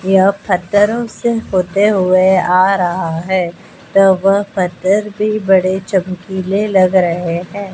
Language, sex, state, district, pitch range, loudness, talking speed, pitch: Hindi, female, Madhya Pradesh, Dhar, 185-200 Hz, -14 LUFS, 125 wpm, 190 Hz